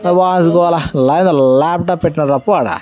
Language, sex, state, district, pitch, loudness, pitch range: Telugu, male, Andhra Pradesh, Sri Satya Sai, 170 Hz, -12 LUFS, 140-175 Hz